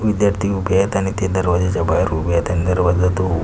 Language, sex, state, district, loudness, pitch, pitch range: Marathi, male, Maharashtra, Pune, -18 LUFS, 90 Hz, 85-95 Hz